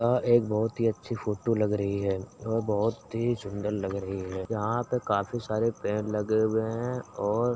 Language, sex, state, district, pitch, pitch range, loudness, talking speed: Hindi, male, Uttar Pradesh, Etah, 110 Hz, 105-115 Hz, -29 LUFS, 205 wpm